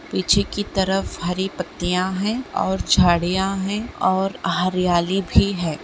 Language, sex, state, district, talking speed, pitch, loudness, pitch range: Bhojpuri, male, Uttar Pradesh, Gorakhpur, 135 wpm, 190 Hz, -21 LUFS, 180-195 Hz